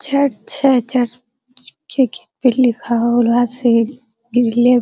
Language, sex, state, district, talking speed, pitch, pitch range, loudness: Hindi, female, Bihar, Araria, 75 wpm, 245 Hz, 235-255 Hz, -16 LUFS